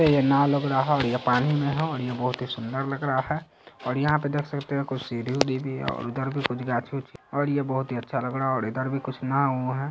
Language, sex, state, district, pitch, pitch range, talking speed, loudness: Hindi, male, Bihar, Saharsa, 135 Hz, 125-140 Hz, 285 wpm, -26 LUFS